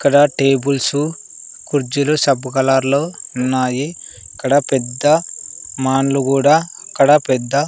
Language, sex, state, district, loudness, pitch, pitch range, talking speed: Telugu, male, Andhra Pradesh, Sri Satya Sai, -16 LUFS, 140 Hz, 135-150 Hz, 100 wpm